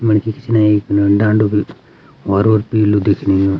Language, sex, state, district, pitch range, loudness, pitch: Garhwali, male, Uttarakhand, Uttarkashi, 100-110 Hz, -14 LUFS, 105 Hz